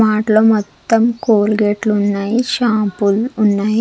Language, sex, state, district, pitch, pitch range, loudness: Telugu, female, Andhra Pradesh, Sri Satya Sai, 215 Hz, 205-225 Hz, -15 LUFS